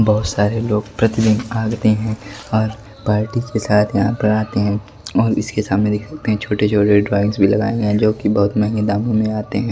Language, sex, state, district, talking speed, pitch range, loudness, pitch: Hindi, male, Delhi, New Delhi, 205 wpm, 105-110 Hz, -17 LUFS, 105 Hz